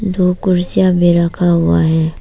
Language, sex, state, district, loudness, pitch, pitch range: Hindi, female, Arunachal Pradesh, Papum Pare, -13 LUFS, 175 Hz, 145-185 Hz